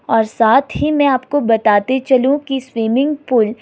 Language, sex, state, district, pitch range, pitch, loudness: Hindi, female, Himachal Pradesh, Shimla, 225-275 Hz, 260 Hz, -15 LUFS